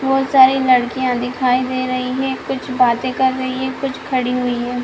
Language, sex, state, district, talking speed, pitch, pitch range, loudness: Hindi, female, Bihar, Supaul, 185 wpm, 255 Hz, 250-260 Hz, -17 LUFS